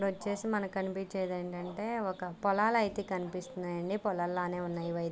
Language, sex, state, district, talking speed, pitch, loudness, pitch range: Telugu, female, Andhra Pradesh, Guntur, 165 wpm, 190 Hz, -34 LUFS, 180-205 Hz